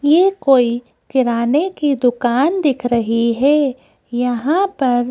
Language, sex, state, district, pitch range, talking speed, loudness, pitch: Hindi, female, Madhya Pradesh, Bhopal, 240-295 Hz, 115 wpm, -16 LUFS, 260 Hz